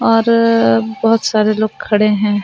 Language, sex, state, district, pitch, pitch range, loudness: Chhattisgarhi, female, Chhattisgarh, Sarguja, 215 Hz, 210-225 Hz, -13 LUFS